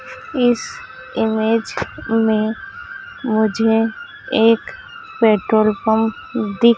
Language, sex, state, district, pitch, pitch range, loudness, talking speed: Hindi, female, Madhya Pradesh, Dhar, 225 Hz, 220-240 Hz, -18 LUFS, 70 wpm